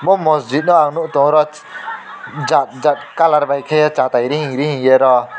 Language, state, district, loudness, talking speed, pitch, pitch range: Kokborok, Tripura, West Tripura, -14 LUFS, 180 wpm, 150 Hz, 135-155 Hz